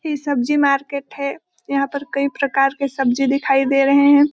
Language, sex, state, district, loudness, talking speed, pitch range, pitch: Hindi, female, Chhattisgarh, Balrampur, -18 LUFS, 205 wpm, 275-285 Hz, 280 Hz